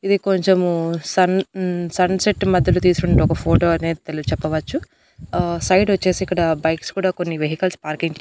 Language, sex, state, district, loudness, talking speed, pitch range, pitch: Telugu, female, Andhra Pradesh, Annamaya, -19 LUFS, 170 wpm, 165-185 Hz, 175 Hz